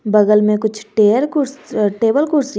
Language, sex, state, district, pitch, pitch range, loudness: Hindi, male, Jharkhand, Garhwa, 215 Hz, 210-275 Hz, -15 LUFS